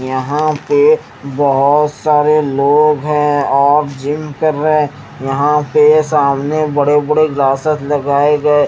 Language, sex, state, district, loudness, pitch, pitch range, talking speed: Hindi, male, Haryana, Jhajjar, -13 LUFS, 150 Hz, 140-150 Hz, 130 wpm